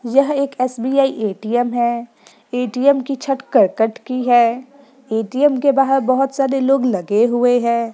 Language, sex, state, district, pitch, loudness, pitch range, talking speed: Hindi, female, Bihar, Gopalganj, 255 Hz, -17 LUFS, 235-270 Hz, 150 wpm